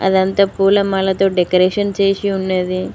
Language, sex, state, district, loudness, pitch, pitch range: Telugu, female, Telangana, Mahabubabad, -15 LUFS, 195 Hz, 185-200 Hz